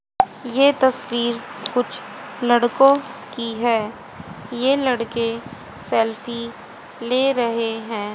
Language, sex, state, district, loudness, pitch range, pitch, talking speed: Hindi, female, Haryana, Rohtak, -20 LUFS, 230-260 Hz, 240 Hz, 90 wpm